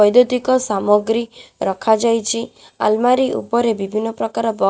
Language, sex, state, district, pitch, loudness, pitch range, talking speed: Odia, female, Odisha, Khordha, 225 Hz, -17 LUFS, 210-235 Hz, 100 wpm